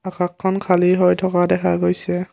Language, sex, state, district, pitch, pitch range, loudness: Assamese, male, Assam, Kamrup Metropolitan, 180 Hz, 175-185 Hz, -18 LUFS